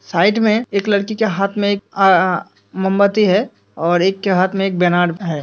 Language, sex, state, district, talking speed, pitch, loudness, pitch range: Hindi, female, Uttar Pradesh, Hamirpur, 220 wpm, 195 Hz, -16 LUFS, 185-205 Hz